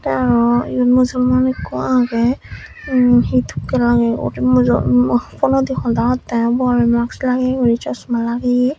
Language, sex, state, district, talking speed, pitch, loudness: Chakma, female, Tripura, Dhalai, 150 wpm, 235 Hz, -16 LUFS